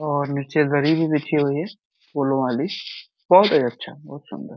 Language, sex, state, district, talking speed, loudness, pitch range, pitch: Hindi, male, Uttar Pradesh, Deoria, 185 wpm, -20 LUFS, 140-155 Hz, 145 Hz